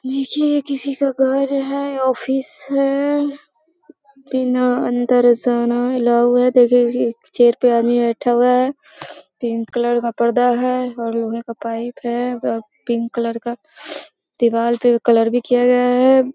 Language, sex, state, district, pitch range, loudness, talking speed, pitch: Hindi, female, Bihar, Sitamarhi, 240-275 Hz, -17 LUFS, 150 wpm, 245 Hz